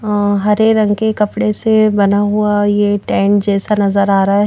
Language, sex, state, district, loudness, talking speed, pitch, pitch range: Hindi, female, Odisha, Nuapada, -13 LUFS, 190 wpm, 205 Hz, 200-210 Hz